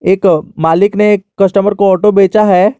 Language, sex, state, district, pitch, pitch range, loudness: Hindi, male, Jharkhand, Garhwa, 200 Hz, 190-205 Hz, -10 LUFS